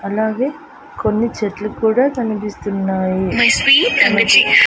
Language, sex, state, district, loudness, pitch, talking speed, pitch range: Telugu, female, Andhra Pradesh, Annamaya, -15 LUFS, 215 Hz, 65 wpm, 200-235 Hz